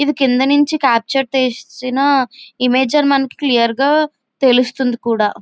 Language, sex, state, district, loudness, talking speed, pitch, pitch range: Telugu, female, Andhra Pradesh, Visakhapatnam, -15 LUFS, 135 wpm, 260 Hz, 250-280 Hz